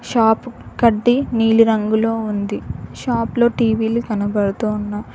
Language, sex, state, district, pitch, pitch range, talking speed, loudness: Telugu, female, Telangana, Mahabubabad, 225 Hz, 210-235 Hz, 95 wpm, -18 LUFS